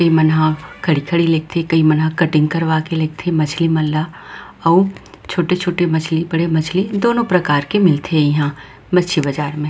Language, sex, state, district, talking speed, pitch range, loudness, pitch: Chhattisgarhi, female, Chhattisgarh, Rajnandgaon, 185 wpm, 155-175 Hz, -16 LUFS, 160 Hz